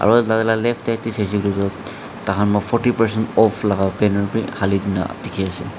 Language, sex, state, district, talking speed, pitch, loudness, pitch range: Nagamese, male, Nagaland, Dimapur, 205 wpm, 105 Hz, -19 LUFS, 100-110 Hz